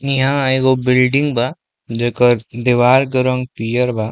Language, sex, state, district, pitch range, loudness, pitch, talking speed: Bhojpuri, male, Uttar Pradesh, Deoria, 120-130 Hz, -15 LUFS, 125 Hz, 145 wpm